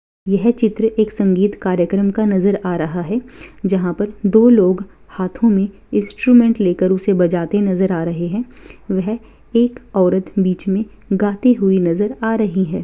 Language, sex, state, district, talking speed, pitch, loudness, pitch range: Hindi, female, Bihar, Samastipur, 165 wpm, 200 Hz, -16 LUFS, 185-220 Hz